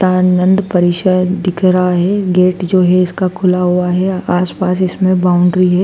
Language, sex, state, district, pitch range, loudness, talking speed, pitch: Hindi, female, Madhya Pradesh, Dhar, 180-185 Hz, -13 LUFS, 165 wpm, 180 Hz